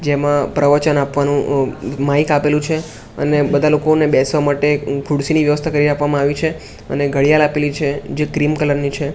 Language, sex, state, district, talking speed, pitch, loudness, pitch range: Gujarati, male, Gujarat, Gandhinagar, 170 wpm, 145 Hz, -16 LUFS, 140-150 Hz